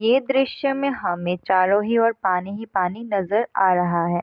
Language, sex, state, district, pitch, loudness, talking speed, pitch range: Hindi, female, Bihar, Sitamarhi, 200 Hz, -21 LUFS, 200 wpm, 180-230 Hz